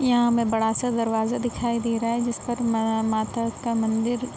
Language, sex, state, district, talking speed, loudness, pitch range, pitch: Hindi, female, Bihar, Araria, 190 wpm, -24 LUFS, 225-240 Hz, 230 Hz